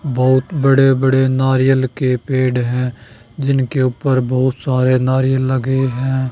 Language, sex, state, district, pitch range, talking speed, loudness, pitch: Hindi, male, Haryana, Charkhi Dadri, 130-135 Hz, 135 wpm, -16 LUFS, 130 Hz